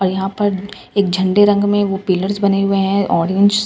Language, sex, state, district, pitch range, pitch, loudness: Hindi, female, Bihar, Katihar, 190-205 Hz, 195 Hz, -16 LUFS